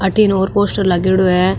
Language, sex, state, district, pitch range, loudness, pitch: Marwari, female, Rajasthan, Nagaur, 185-200 Hz, -14 LUFS, 190 Hz